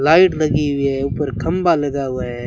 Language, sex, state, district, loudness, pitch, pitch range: Hindi, male, Rajasthan, Bikaner, -18 LUFS, 145 Hz, 135-155 Hz